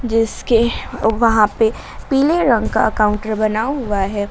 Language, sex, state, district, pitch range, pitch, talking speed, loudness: Hindi, female, Jharkhand, Garhwa, 215-235 Hz, 225 Hz, 140 wpm, -17 LUFS